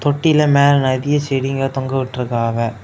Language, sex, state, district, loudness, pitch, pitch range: Tamil, male, Tamil Nadu, Kanyakumari, -16 LUFS, 135 Hz, 125-145 Hz